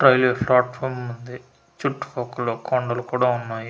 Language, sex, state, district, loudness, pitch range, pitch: Telugu, male, Andhra Pradesh, Manyam, -23 LUFS, 120-125 Hz, 125 Hz